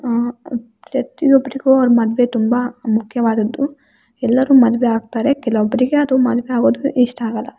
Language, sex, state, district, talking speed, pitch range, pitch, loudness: Kannada, female, Karnataka, Raichur, 110 wpm, 235-265 Hz, 245 Hz, -16 LUFS